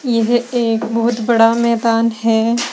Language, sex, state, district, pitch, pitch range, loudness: Hindi, female, Uttar Pradesh, Saharanpur, 230 Hz, 225-240 Hz, -15 LUFS